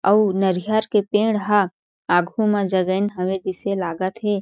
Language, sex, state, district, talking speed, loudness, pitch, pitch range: Chhattisgarhi, female, Chhattisgarh, Jashpur, 165 wpm, -21 LUFS, 195 Hz, 185-210 Hz